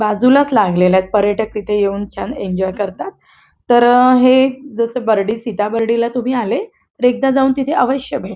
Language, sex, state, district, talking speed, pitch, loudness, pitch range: Marathi, female, Maharashtra, Chandrapur, 160 wpm, 235 Hz, -15 LUFS, 210-260 Hz